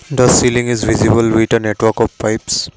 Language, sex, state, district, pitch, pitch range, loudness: English, male, Assam, Kamrup Metropolitan, 110 Hz, 110-120 Hz, -13 LUFS